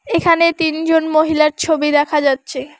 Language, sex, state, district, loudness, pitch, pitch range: Bengali, female, West Bengal, Alipurduar, -15 LUFS, 310 Hz, 295-320 Hz